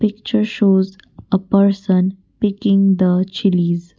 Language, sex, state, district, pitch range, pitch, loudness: English, female, Assam, Kamrup Metropolitan, 190-210 Hz, 195 Hz, -17 LUFS